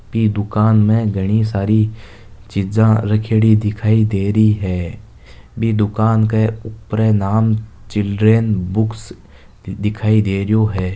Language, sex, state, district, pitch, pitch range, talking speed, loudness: Marwari, male, Rajasthan, Nagaur, 110 Hz, 100-110 Hz, 110 wpm, -16 LUFS